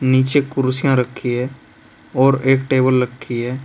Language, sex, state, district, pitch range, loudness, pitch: Hindi, male, Uttar Pradesh, Saharanpur, 125-135 Hz, -17 LUFS, 130 Hz